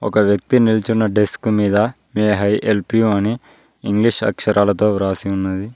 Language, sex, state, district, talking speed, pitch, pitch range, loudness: Telugu, male, Telangana, Mahabubabad, 145 wpm, 105 Hz, 100-110 Hz, -17 LUFS